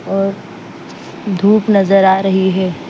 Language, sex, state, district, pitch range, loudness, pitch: Hindi, female, Bihar, Patna, 190-195 Hz, -13 LUFS, 195 Hz